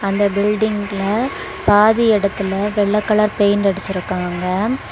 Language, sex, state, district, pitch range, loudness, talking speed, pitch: Tamil, female, Tamil Nadu, Kanyakumari, 195-215 Hz, -17 LUFS, 100 wpm, 205 Hz